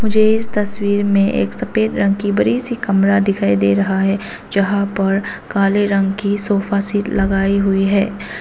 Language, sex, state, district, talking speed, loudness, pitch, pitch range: Hindi, female, Arunachal Pradesh, Papum Pare, 170 wpm, -16 LUFS, 200 Hz, 195-205 Hz